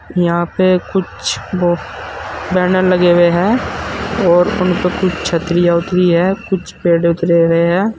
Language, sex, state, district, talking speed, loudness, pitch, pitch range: Hindi, male, Uttar Pradesh, Saharanpur, 150 wpm, -14 LUFS, 180 Hz, 170-185 Hz